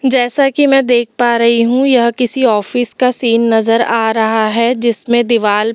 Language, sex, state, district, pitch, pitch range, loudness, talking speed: Hindi, female, Delhi, New Delhi, 235 Hz, 230-250 Hz, -11 LUFS, 200 wpm